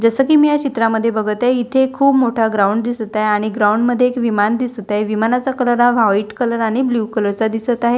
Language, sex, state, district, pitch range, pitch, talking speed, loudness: Marathi, female, Maharashtra, Washim, 215-250 Hz, 230 Hz, 220 wpm, -16 LUFS